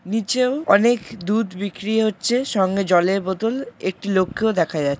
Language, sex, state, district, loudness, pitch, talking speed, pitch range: Bengali, male, West Bengal, Jalpaiguri, -20 LUFS, 205 Hz, 145 wpm, 190-225 Hz